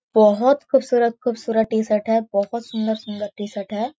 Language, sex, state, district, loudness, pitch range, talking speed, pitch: Hindi, female, Chhattisgarh, Korba, -20 LUFS, 210-235 Hz, 120 wpm, 225 Hz